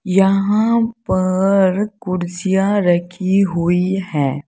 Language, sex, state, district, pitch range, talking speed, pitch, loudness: Hindi, female, Uttar Pradesh, Saharanpur, 180-195 Hz, 80 wpm, 190 Hz, -17 LUFS